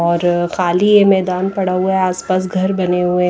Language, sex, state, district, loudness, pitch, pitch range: Hindi, female, Odisha, Nuapada, -15 LUFS, 185 Hz, 180-190 Hz